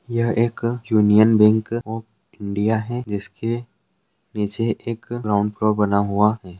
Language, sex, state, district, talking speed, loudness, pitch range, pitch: Hindi, male, Andhra Pradesh, Krishna, 135 wpm, -20 LUFS, 105-115 Hz, 110 Hz